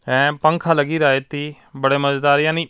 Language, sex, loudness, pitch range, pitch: Punjabi, male, -18 LUFS, 140-155 Hz, 145 Hz